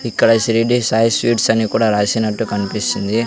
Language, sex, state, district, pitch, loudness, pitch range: Telugu, male, Andhra Pradesh, Sri Satya Sai, 115 Hz, -16 LUFS, 105-115 Hz